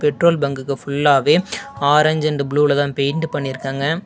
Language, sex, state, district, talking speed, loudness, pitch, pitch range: Tamil, male, Tamil Nadu, Namakkal, 120 wpm, -18 LUFS, 145 Hz, 140-155 Hz